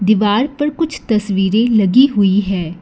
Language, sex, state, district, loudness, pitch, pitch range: Hindi, female, Karnataka, Bangalore, -14 LUFS, 210 Hz, 195-265 Hz